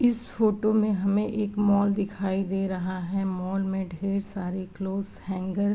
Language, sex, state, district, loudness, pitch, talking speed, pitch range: Hindi, female, Uttar Pradesh, Varanasi, -27 LUFS, 195 Hz, 175 wpm, 190-205 Hz